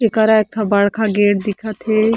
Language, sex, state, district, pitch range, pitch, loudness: Chhattisgarhi, female, Chhattisgarh, Korba, 205-220 Hz, 215 Hz, -16 LUFS